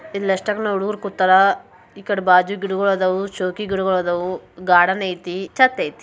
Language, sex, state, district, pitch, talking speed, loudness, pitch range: Kannada, female, Karnataka, Bijapur, 190 Hz, 150 wpm, -19 LUFS, 185-200 Hz